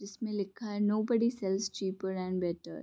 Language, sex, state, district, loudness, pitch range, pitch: Hindi, female, Bihar, Vaishali, -33 LUFS, 190-215 Hz, 200 Hz